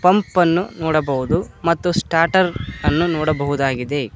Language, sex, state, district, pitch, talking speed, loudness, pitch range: Kannada, male, Karnataka, Koppal, 165 Hz, 85 wpm, -18 LUFS, 145-175 Hz